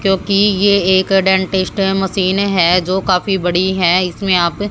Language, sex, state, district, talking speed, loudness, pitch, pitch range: Hindi, female, Haryana, Jhajjar, 150 wpm, -14 LUFS, 190 Hz, 185-195 Hz